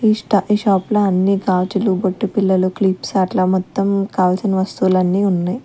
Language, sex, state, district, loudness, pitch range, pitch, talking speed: Telugu, female, Andhra Pradesh, Sri Satya Sai, -17 LUFS, 185-200 Hz, 195 Hz, 170 wpm